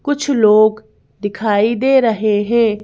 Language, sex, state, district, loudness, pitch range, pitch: Hindi, female, Madhya Pradesh, Bhopal, -14 LUFS, 210-235 Hz, 220 Hz